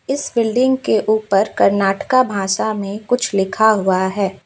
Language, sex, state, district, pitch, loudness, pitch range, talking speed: Hindi, female, West Bengal, Alipurduar, 215 Hz, -17 LUFS, 195-245 Hz, 150 wpm